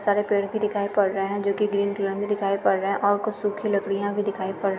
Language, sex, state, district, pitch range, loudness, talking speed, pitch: Hindi, female, Uttar Pradesh, Budaun, 200-205 Hz, -24 LUFS, 300 wpm, 200 Hz